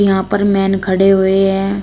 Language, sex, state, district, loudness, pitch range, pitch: Hindi, female, Uttar Pradesh, Shamli, -13 LUFS, 195-200 Hz, 195 Hz